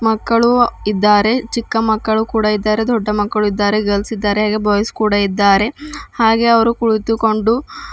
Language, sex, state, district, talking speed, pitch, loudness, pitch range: Kannada, female, Karnataka, Bidar, 145 wpm, 220 Hz, -15 LUFS, 210-230 Hz